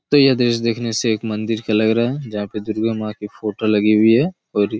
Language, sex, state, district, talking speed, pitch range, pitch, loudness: Hindi, male, Chhattisgarh, Raigarh, 265 wpm, 105-115 Hz, 110 Hz, -18 LUFS